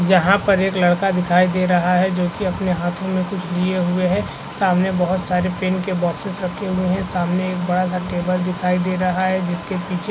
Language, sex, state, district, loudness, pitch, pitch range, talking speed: Hindi, female, Chhattisgarh, Korba, -19 LUFS, 185 Hz, 180-190 Hz, 220 wpm